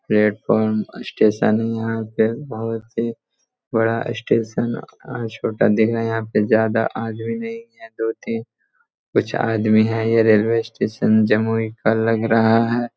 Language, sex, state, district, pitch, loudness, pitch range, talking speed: Hindi, male, Bihar, Jamui, 115 Hz, -20 LUFS, 110-115 Hz, 155 wpm